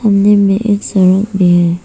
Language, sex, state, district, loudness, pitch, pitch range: Hindi, female, Arunachal Pradesh, Papum Pare, -11 LUFS, 195 Hz, 185-205 Hz